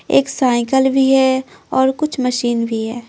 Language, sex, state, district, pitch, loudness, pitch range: Hindi, female, Bihar, Patna, 260 Hz, -16 LUFS, 240-265 Hz